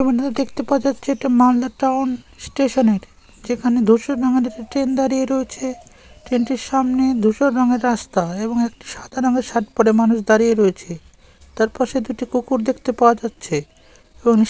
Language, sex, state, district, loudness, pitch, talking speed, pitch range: Bengali, male, West Bengal, Malda, -19 LUFS, 250 Hz, 170 wpm, 230-265 Hz